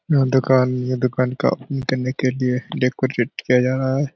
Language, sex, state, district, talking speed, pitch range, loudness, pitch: Hindi, male, Bihar, Kishanganj, 190 wpm, 125-130 Hz, -20 LUFS, 130 Hz